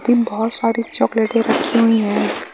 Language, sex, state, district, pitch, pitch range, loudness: Hindi, male, Bihar, West Champaran, 230 Hz, 225-235 Hz, -17 LUFS